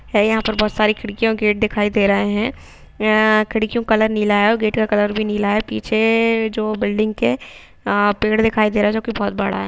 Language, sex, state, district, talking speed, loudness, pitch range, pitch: Hindi, female, Jharkhand, Sahebganj, 240 wpm, -18 LUFS, 210-220 Hz, 215 Hz